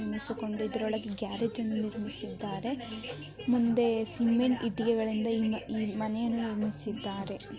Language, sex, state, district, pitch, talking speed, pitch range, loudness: Kannada, male, Karnataka, Mysore, 220 Hz, 80 wpm, 215-230 Hz, -32 LUFS